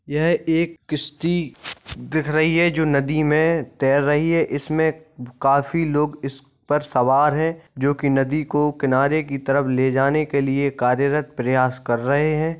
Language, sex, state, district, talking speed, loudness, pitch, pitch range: Hindi, male, Uttar Pradesh, Jalaun, 175 wpm, -20 LUFS, 145 Hz, 135-155 Hz